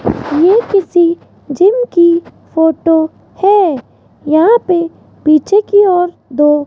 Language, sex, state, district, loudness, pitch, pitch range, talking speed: Hindi, female, Rajasthan, Jaipur, -11 LUFS, 345 Hz, 315-395 Hz, 115 wpm